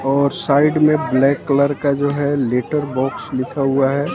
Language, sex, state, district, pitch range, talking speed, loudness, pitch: Hindi, male, Haryana, Jhajjar, 135-145 Hz, 190 wpm, -17 LUFS, 140 Hz